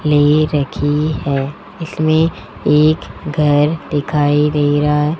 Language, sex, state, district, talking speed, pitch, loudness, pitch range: Hindi, male, Rajasthan, Jaipur, 115 wpm, 150 Hz, -15 LUFS, 145-155 Hz